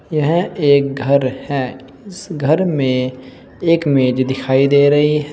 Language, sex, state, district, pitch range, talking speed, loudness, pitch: Hindi, male, Uttar Pradesh, Shamli, 130-150 Hz, 145 wpm, -15 LUFS, 140 Hz